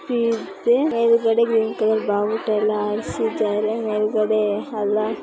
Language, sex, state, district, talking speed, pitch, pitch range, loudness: Kannada, female, Karnataka, Chamarajanagar, 105 wpm, 215 Hz, 210-230 Hz, -21 LUFS